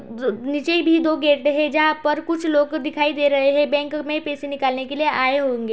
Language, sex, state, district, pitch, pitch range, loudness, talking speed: Hindi, female, Uttar Pradesh, Budaun, 290 Hz, 280-305 Hz, -20 LUFS, 220 wpm